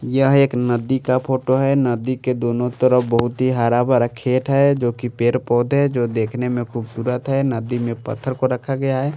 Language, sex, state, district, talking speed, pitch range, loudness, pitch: Hindi, male, Bihar, Patna, 210 wpm, 120-130 Hz, -19 LUFS, 125 Hz